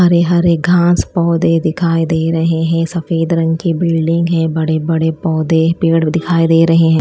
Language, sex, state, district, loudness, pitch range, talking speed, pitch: Hindi, female, Chandigarh, Chandigarh, -13 LUFS, 160-170 Hz, 180 wpm, 165 Hz